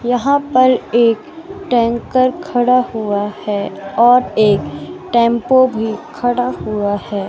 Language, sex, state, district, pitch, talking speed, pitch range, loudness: Hindi, male, Madhya Pradesh, Katni, 235 Hz, 115 wpm, 210-255 Hz, -15 LUFS